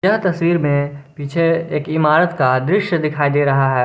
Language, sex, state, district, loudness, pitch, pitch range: Hindi, male, Jharkhand, Garhwa, -17 LUFS, 150 Hz, 145-170 Hz